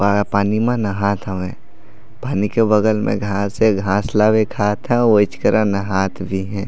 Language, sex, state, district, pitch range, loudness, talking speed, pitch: Chhattisgarhi, male, Chhattisgarh, Raigarh, 100-110 Hz, -17 LUFS, 190 wpm, 100 Hz